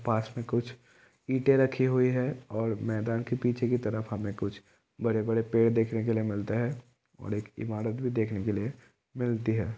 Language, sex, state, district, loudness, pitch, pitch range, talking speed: Hindi, male, Bihar, Kishanganj, -30 LUFS, 115 Hz, 110-125 Hz, 200 wpm